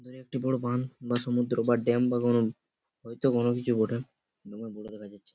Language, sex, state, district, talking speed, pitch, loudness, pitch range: Bengali, male, West Bengal, Purulia, 200 wpm, 120 Hz, -28 LUFS, 110-125 Hz